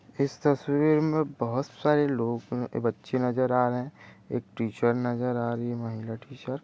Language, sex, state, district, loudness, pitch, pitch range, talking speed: Hindi, male, Maharashtra, Dhule, -28 LUFS, 125 Hz, 120-140 Hz, 190 wpm